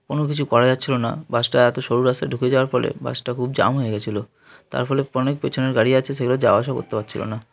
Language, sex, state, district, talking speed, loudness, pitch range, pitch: Bengali, male, West Bengal, North 24 Parganas, 265 wpm, -21 LUFS, 120-135 Hz, 125 Hz